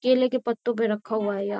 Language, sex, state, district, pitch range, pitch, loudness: Hindi, female, Uttar Pradesh, Jyotiba Phule Nagar, 210-255 Hz, 230 Hz, -25 LUFS